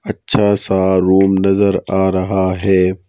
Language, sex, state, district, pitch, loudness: Hindi, male, Madhya Pradesh, Bhopal, 95 Hz, -14 LUFS